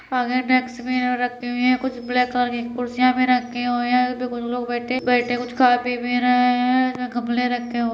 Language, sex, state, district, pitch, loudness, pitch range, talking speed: Hindi, female, Uttar Pradesh, Deoria, 245 Hz, -21 LUFS, 245-250 Hz, 250 wpm